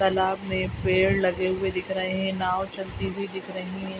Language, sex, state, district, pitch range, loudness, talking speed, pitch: Hindi, female, Bihar, Araria, 185-190 Hz, -26 LUFS, 210 wpm, 190 Hz